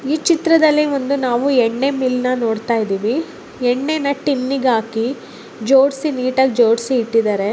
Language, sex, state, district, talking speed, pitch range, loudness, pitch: Kannada, female, Karnataka, Bellary, 120 wpm, 230-280 Hz, -17 LUFS, 255 Hz